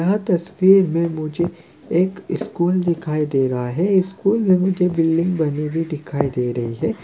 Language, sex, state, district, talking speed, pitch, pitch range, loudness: Hindi, male, Chhattisgarh, Sarguja, 170 wpm, 170 Hz, 155-185 Hz, -19 LUFS